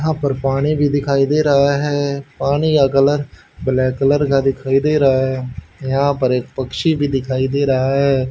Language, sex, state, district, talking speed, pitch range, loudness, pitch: Hindi, male, Haryana, Rohtak, 195 wpm, 130-145 Hz, -17 LUFS, 135 Hz